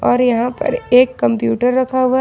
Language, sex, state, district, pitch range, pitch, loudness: Hindi, female, Jharkhand, Ranchi, 230-255 Hz, 250 Hz, -15 LUFS